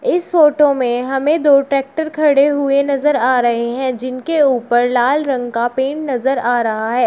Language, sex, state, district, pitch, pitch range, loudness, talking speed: Hindi, female, Uttar Pradesh, Shamli, 270 Hz, 245-295 Hz, -15 LUFS, 185 wpm